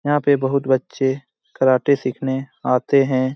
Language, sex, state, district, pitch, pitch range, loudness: Hindi, male, Jharkhand, Jamtara, 135 Hz, 130-140 Hz, -19 LUFS